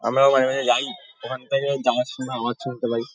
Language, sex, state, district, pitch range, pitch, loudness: Bengali, male, West Bengal, Kolkata, 120-135 Hz, 130 Hz, -22 LUFS